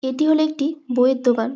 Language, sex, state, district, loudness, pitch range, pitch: Bengali, female, West Bengal, Malda, -19 LUFS, 255-310 Hz, 265 Hz